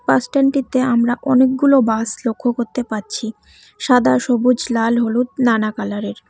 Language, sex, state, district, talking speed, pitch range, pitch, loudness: Bengali, female, West Bengal, Cooch Behar, 125 wpm, 225-255 Hz, 240 Hz, -17 LUFS